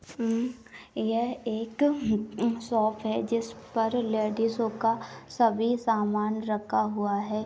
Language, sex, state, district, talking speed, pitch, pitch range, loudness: Hindi, female, Uttar Pradesh, Jyotiba Phule Nagar, 105 wpm, 225 Hz, 215-235 Hz, -28 LUFS